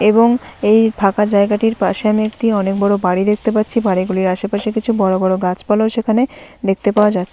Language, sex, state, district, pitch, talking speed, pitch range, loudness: Bengali, female, West Bengal, Malda, 210 Hz, 180 wpm, 195-220 Hz, -15 LUFS